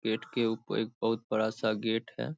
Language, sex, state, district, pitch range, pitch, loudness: Hindi, male, Bihar, Saharsa, 110-115 Hz, 115 Hz, -32 LUFS